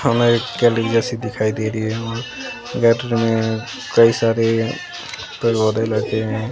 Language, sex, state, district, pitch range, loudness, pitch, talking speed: Hindi, female, Himachal Pradesh, Shimla, 110-115 Hz, -19 LUFS, 115 Hz, 155 wpm